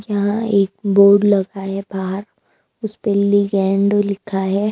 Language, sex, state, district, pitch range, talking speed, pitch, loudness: Hindi, female, Maharashtra, Mumbai Suburban, 195-205 Hz, 125 wpm, 200 Hz, -17 LUFS